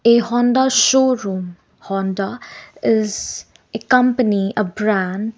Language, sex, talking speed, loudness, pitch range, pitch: English, female, 100 wpm, -17 LUFS, 195-250 Hz, 215 Hz